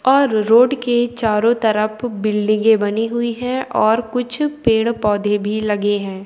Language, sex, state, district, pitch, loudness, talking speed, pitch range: Bhojpuri, female, Uttar Pradesh, Gorakhpur, 225 Hz, -17 LUFS, 165 wpm, 210-240 Hz